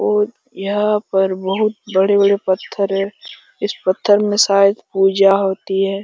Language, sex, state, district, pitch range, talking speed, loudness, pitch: Hindi, male, Jharkhand, Jamtara, 195-205 Hz, 140 wpm, -16 LUFS, 200 Hz